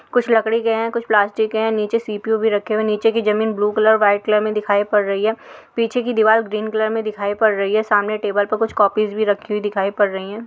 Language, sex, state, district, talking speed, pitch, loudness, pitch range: Hindi, female, Uttar Pradesh, Hamirpur, 275 wpm, 215 Hz, -18 LUFS, 205-220 Hz